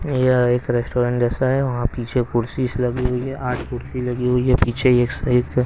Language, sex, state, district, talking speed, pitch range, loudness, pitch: Hindi, male, Haryana, Rohtak, 200 wpm, 120-130 Hz, -20 LUFS, 125 Hz